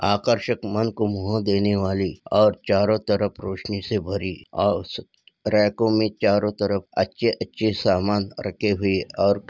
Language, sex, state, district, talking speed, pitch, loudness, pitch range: Hindi, male, Uttar Pradesh, Ghazipur, 135 wpm, 100 Hz, -23 LUFS, 100-105 Hz